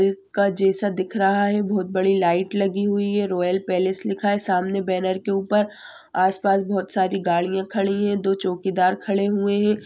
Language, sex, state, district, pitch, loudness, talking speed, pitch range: Hindi, female, Bihar, Saran, 195 Hz, -22 LUFS, 175 wpm, 190-200 Hz